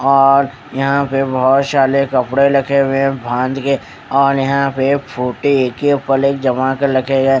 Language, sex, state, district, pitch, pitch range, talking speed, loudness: Hindi, male, Haryana, Charkhi Dadri, 135 Hz, 135-140 Hz, 180 wpm, -15 LUFS